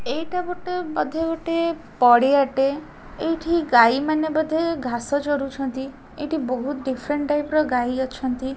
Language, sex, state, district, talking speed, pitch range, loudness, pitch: Odia, female, Odisha, Khordha, 125 wpm, 260-320 Hz, -22 LUFS, 290 Hz